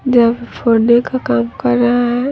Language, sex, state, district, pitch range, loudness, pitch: Hindi, female, Bihar, West Champaran, 235-245 Hz, -14 LUFS, 240 Hz